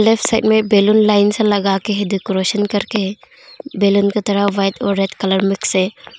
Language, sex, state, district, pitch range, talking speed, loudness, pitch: Hindi, female, Arunachal Pradesh, Longding, 195-215 Hz, 185 wpm, -16 LUFS, 205 Hz